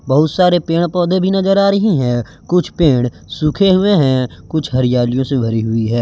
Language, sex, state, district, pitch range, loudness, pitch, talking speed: Hindi, male, Jharkhand, Garhwa, 125-180 Hz, -15 LUFS, 150 Hz, 200 wpm